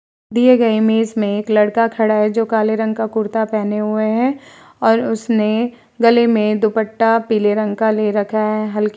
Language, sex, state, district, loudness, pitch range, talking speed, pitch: Hindi, female, Uttar Pradesh, Hamirpur, -16 LUFS, 215-230 Hz, 195 wpm, 220 Hz